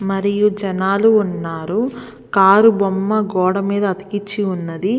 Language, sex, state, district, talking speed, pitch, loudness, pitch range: Telugu, female, Andhra Pradesh, Visakhapatnam, 110 wpm, 200 Hz, -17 LUFS, 190-210 Hz